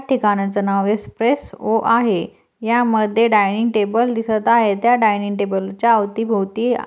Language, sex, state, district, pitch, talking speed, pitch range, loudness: Marathi, female, Maharashtra, Aurangabad, 220 Hz, 140 wpm, 205-235 Hz, -17 LUFS